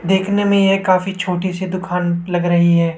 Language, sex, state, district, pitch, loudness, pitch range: Hindi, male, Rajasthan, Jaipur, 185 Hz, -17 LUFS, 175-190 Hz